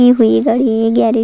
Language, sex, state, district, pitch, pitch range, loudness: Hindi, female, Goa, North and South Goa, 230 Hz, 225-240 Hz, -12 LUFS